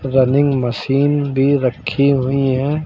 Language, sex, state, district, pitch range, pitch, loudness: Hindi, male, Uttar Pradesh, Lucknow, 130-140 Hz, 135 Hz, -16 LUFS